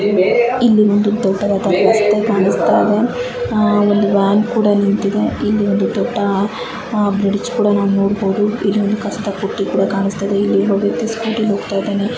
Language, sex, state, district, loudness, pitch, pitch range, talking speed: Kannada, female, Karnataka, Bijapur, -15 LUFS, 205 Hz, 200-215 Hz, 140 wpm